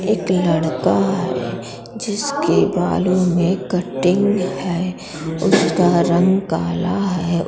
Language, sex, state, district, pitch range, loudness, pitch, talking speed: Bundeli, female, Uttar Pradesh, Budaun, 170-190 Hz, -18 LUFS, 180 Hz, 95 wpm